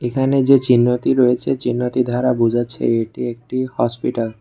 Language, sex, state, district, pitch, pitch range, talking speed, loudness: Bengali, male, Tripura, West Tripura, 125 Hz, 120-125 Hz, 165 wpm, -18 LUFS